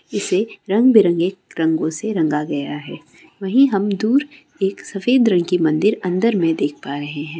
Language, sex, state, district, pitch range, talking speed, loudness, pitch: Hindi, female, Andhra Pradesh, Guntur, 160-215 Hz, 180 wpm, -18 LUFS, 190 Hz